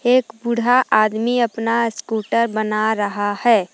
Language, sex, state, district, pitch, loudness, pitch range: Hindi, female, Jharkhand, Palamu, 230 Hz, -18 LUFS, 215-235 Hz